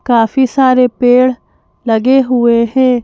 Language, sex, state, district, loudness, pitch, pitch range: Hindi, female, Madhya Pradesh, Bhopal, -11 LUFS, 250 Hz, 235-260 Hz